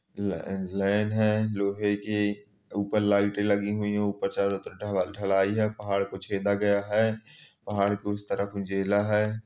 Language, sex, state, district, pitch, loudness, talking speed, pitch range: Hindi, male, Bihar, Supaul, 100 Hz, -27 LUFS, 170 wpm, 100-105 Hz